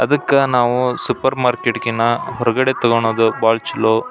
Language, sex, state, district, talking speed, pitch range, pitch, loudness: Kannada, male, Karnataka, Belgaum, 130 wpm, 115-130 Hz, 120 Hz, -16 LUFS